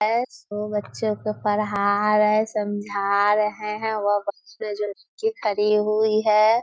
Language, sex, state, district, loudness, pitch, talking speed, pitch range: Hindi, female, Bihar, Muzaffarpur, -23 LUFS, 210 Hz, 135 wpm, 205-215 Hz